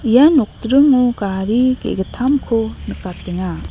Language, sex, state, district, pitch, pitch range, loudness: Garo, female, Meghalaya, North Garo Hills, 235 Hz, 195-260 Hz, -16 LUFS